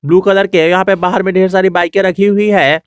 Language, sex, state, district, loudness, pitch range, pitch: Hindi, male, Jharkhand, Garhwa, -11 LUFS, 180-195 Hz, 190 Hz